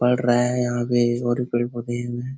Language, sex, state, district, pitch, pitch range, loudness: Hindi, male, Bihar, Jahanabad, 120 Hz, 120-125 Hz, -22 LUFS